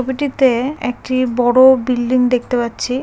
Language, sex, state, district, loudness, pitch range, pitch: Bengali, female, West Bengal, Malda, -15 LUFS, 245-260 Hz, 255 Hz